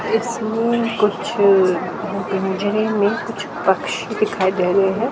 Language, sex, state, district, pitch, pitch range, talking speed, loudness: Hindi, female, Haryana, Jhajjar, 210 Hz, 195-225 Hz, 115 wpm, -19 LUFS